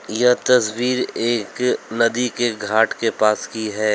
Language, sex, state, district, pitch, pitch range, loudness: Hindi, male, Uttar Pradesh, Lalitpur, 115 Hz, 110-125 Hz, -19 LUFS